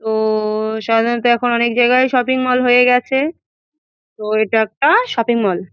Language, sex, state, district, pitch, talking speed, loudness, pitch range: Bengali, female, West Bengal, Jalpaiguri, 240 Hz, 155 wpm, -15 LUFS, 220-250 Hz